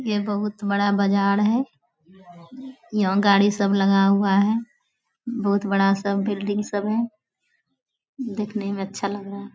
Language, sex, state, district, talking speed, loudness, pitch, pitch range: Hindi, female, Bihar, Bhagalpur, 140 wpm, -22 LUFS, 205 Hz, 200-215 Hz